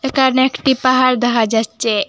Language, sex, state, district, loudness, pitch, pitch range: Bengali, female, Assam, Hailakandi, -14 LUFS, 255 Hz, 230-265 Hz